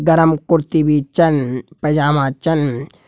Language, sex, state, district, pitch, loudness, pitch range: Garhwali, male, Uttarakhand, Uttarkashi, 150 Hz, -16 LUFS, 145-165 Hz